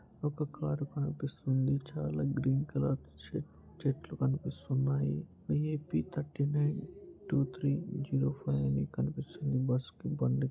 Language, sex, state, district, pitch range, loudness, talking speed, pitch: Telugu, male, Andhra Pradesh, Anantapur, 115-150 Hz, -34 LUFS, 115 wpm, 140 Hz